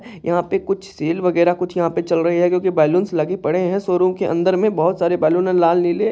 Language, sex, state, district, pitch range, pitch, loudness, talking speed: Hindi, male, Bihar, Saharsa, 170-185 Hz, 180 Hz, -18 LUFS, 255 wpm